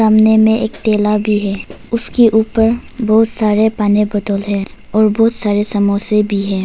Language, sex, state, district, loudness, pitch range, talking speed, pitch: Hindi, female, Arunachal Pradesh, Papum Pare, -14 LUFS, 205-220 Hz, 170 wpm, 215 Hz